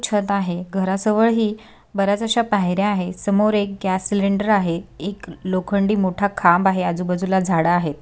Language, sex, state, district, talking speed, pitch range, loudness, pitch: Marathi, female, Maharashtra, Sindhudurg, 155 wpm, 180-205 Hz, -20 LUFS, 195 Hz